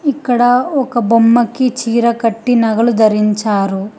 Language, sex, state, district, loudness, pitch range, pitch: Telugu, female, Telangana, Hyderabad, -13 LUFS, 220-245 Hz, 235 Hz